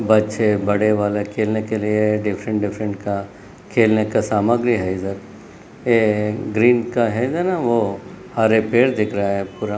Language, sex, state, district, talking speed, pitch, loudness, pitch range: Hindi, male, Maharashtra, Chandrapur, 125 wpm, 105 Hz, -19 LUFS, 105-115 Hz